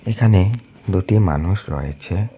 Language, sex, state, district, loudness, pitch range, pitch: Bengali, male, West Bengal, Cooch Behar, -19 LUFS, 90-115 Hz, 100 Hz